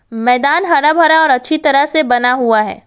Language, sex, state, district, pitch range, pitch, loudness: Hindi, female, Assam, Kamrup Metropolitan, 245-315 Hz, 280 Hz, -11 LUFS